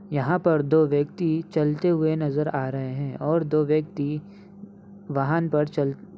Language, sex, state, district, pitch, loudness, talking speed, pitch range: Hindi, male, Bihar, Begusarai, 155 Hz, -24 LUFS, 165 wpm, 145-175 Hz